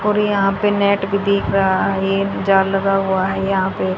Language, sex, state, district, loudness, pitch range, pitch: Hindi, female, Haryana, Rohtak, -17 LUFS, 195-200 Hz, 195 Hz